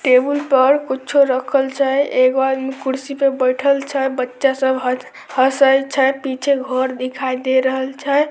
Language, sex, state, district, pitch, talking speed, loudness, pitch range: Maithili, female, Bihar, Samastipur, 265 Hz, 150 wpm, -17 LUFS, 260-275 Hz